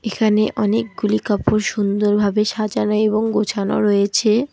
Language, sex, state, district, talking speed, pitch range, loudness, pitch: Bengali, female, West Bengal, Alipurduar, 105 wpm, 205-215 Hz, -18 LUFS, 215 Hz